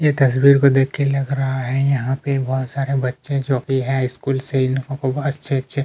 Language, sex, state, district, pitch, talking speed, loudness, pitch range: Hindi, male, Chhattisgarh, Kabirdham, 135 Hz, 225 wpm, -19 LUFS, 130-140 Hz